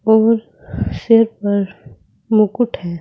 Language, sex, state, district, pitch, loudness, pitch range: Hindi, female, Uttar Pradesh, Saharanpur, 210 Hz, -16 LUFS, 175-225 Hz